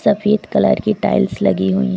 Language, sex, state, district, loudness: Hindi, female, Uttar Pradesh, Lucknow, -16 LUFS